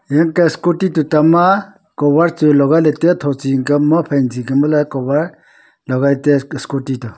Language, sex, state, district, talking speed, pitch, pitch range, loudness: Wancho, male, Arunachal Pradesh, Longding, 235 wpm, 150 Hz, 140-165 Hz, -14 LUFS